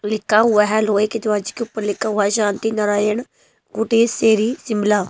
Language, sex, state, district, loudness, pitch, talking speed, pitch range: Hindi, female, Himachal Pradesh, Shimla, -18 LUFS, 215 Hz, 175 wpm, 210-225 Hz